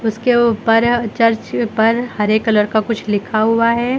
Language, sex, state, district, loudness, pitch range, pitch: Hindi, female, Uttar Pradesh, Lucknow, -15 LUFS, 215-235 Hz, 225 Hz